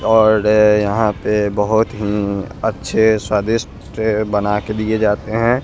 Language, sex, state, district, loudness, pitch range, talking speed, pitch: Hindi, male, Chandigarh, Chandigarh, -16 LUFS, 105-110 Hz, 130 wpm, 105 Hz